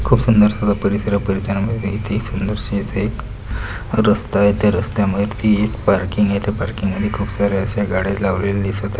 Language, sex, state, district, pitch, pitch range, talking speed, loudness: Marathi, male, Maharashtra, Solapur, 100 Hz, 100-105 Hz, 185 wpm, -18 LUFS